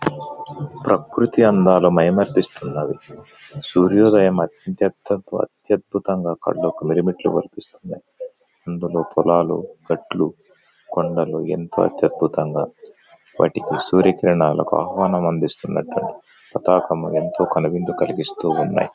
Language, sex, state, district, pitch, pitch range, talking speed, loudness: Telugu, male, Andhra Pradesh, Anantapur, 95 Hz, 85-110 Hz, 70 wpm, -19 LUFS